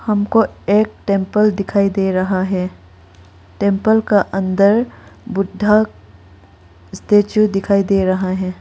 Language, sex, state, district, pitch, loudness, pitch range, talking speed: Hindi, female, Arunachal Pradesh, Lower Dibang Valley, 195 Hz, -16 LUFS, 185-210 Hz, 110 wpm